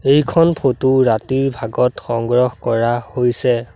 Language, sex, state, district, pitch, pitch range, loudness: Assamese, male, Assam, Sonitpur, 125 Hz, 120-135 Hz, -16 LUFS